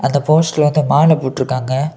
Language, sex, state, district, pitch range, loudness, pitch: Tamil, male, Tamil Nadu, Kanyakumari, 130-155 Hz, -14 LUFS, 145 Hz